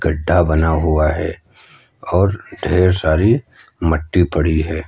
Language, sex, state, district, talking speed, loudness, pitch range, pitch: Hindi, male, Uttar Pradesh, Lucknow, 125 wpm, -16 LUFS, 80-90 Hz, 80 Hz